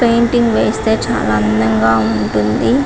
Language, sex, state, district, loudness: Telugu, female, Telangana, Karimnagar, -14 LUFS